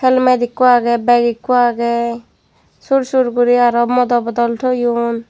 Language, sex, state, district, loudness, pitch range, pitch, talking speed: Chakma, female, Tripura, Dhalai, -14 LUFS, 235-250 Hz, 240 Hz, 145 wpm